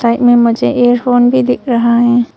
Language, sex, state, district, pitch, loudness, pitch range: Hindi, female, Arunachal Pradesh, Longding, 245 Hz, -11 LUFS, 235-245 Hz